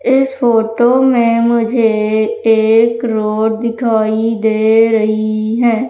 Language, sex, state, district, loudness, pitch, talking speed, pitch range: Hindi, female, Madhya Pradesh, Umaria, -13 LUFS, 225 Hz, 100 wpm, 220-235 Hz